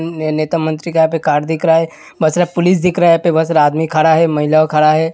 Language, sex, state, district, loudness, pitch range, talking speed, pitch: Hindi, male, Uttar Pradesh, Hamirpur, -13 LUFS, 155-165 Hz, 280 wpm, 160 Hz